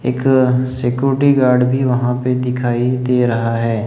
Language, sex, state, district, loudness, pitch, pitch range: Hindi, male, Maharashtra, Gondia, -15 LUFS, 125 Hz, 125-130 Hz